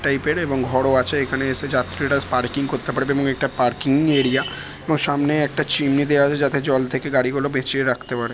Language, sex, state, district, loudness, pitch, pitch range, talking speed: Bengali, male, West Bengal, Purulia, -20 LUFS, 135 Hz, 130-145 Hz, 210 wpm